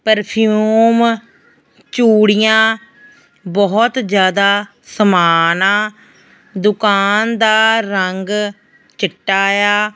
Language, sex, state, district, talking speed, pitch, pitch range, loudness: Punjabi, female, Punjab, Fazilka, 70 wpm, 210 Hz, 200-225 Hz, -13 LUFS